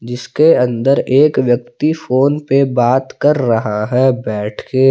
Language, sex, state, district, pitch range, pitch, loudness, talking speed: Hindi, male, Jharkhand, Palamu, 120-140 Hz, 130 Hz, -14 LUFS, 145 wpm